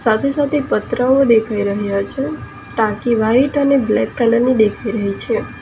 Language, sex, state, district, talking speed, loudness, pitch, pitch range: Gujarati, female, Gujarat, Valsad, 160 wpm, -16 LUFS, 235 Hz, 215-270 Hz